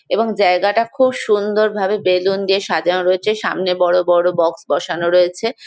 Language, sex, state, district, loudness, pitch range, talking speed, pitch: Bengali, female, West Bengal, Jalpaiguri, -16 LUFS, 180-210 Hz, 160 wpm, 185 Hz